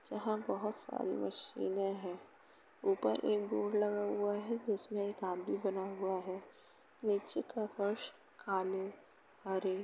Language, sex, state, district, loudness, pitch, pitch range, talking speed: Hindi, female, Uttar Pradesh, Jalaun, -38 LUFS, 200 Hz, 190-210 Hz, 140 wpm